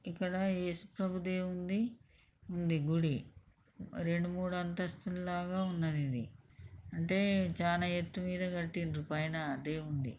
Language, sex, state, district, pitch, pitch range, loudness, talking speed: Telugu, female, Andhra Pradesh, Krishna, 175 Hz, 155-185 Hz, -36 LUFS, 120 wpm